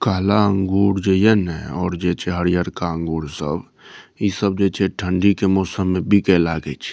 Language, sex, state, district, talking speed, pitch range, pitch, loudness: Maithili, male, Bihar, Saharsa, 200 wpm, 85-100 Hz, 95 Hz, -19 LUFS